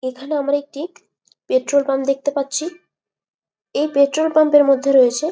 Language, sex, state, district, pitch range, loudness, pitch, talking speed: Bengali, female, West Bengal, Malda, 275-310 Hz, -17 LUFS, 285 Hz, 145 wpm